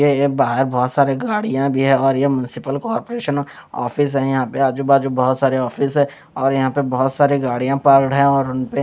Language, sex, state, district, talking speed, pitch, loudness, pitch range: Hindi, male, Chandigarh, Chandigarh, 210 wpm, 135 Hz, -17 LUFS, 130-140 Hz